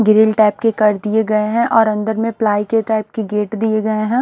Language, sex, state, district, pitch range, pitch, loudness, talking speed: Hindi, male, Odisha, Nuapada, 210-225 Hz, 215 Hz, -16 LUFS, 255 wpm